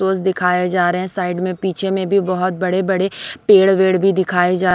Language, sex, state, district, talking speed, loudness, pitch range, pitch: Hindi, female, Odisha, Sambalpur, 225 wpm, -16 LUFS, 180-190 Hz, 185 Hz